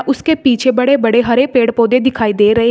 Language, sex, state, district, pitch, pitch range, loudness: Hindi, female, Uttar Pradesh, Shamli, 245 Hz, 230-260 Hz, -12 LUFS